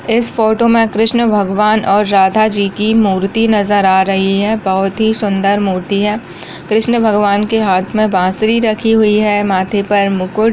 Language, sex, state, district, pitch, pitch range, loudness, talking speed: Hindi, female, Bihar, Kishanganj, 210 Hz, 195-220 Hz, -12 LUFS, 180 wpm